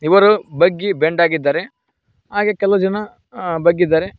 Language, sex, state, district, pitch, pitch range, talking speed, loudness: Kannada, male, Karnataka, Koppal, 185 Hz, 165-200 Hz, 100 wpm, -16 LUFS